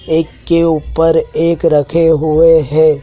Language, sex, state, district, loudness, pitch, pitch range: Hindi, male, Madhya Pradesh, Dhar, -12 LUFS, 160 Hz, 155-165 Hz